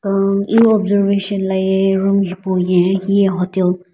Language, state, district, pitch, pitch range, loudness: Sumi, Nagaland, Dimapur, 195 Hz, 185-200 Hz, -15 LUFS